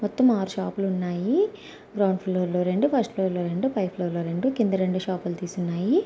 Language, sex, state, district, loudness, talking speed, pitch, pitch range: Telugu, female, Andhra Pradesh, Anantapur, -25 LUFS, 200 wpm, 190 Hz, 180-220 Hz